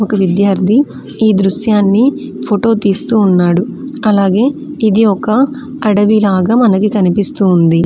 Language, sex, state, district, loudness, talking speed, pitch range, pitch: Telugu, female, Andhra Pradesh, Manyam, -12 LUFS, 100 wpm, 195-235 Hz, 210 Hz